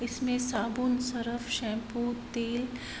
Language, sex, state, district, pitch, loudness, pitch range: Hindi, female, Uttar Pradesh, Varanasi, 240 Hz, -32 LUFS, 235-250 Hz